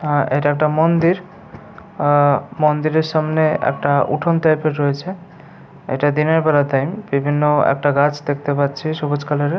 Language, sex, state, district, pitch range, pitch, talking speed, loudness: Bengali, male, West Bengal, Paschim Medinipur, 145-160 Hz, 150 Hz, 155 wpm, -17 LUFS